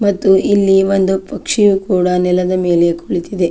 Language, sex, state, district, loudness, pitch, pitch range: Kannada, female, Karnataka, Chamarajanagar, -14 LUFS, 190 Hz, 180-195 Hz